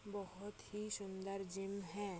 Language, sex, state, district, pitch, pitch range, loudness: Hindi, female, Uttar Pradesh, Jyotiba Phule Nagar, 200 Hz, 195-205 Hz, -46 LUFS